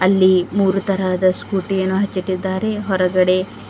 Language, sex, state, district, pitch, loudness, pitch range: Kannada, female, Karnataka, Bidar, 190 Hz, -18 LUFS, 185-195 Hz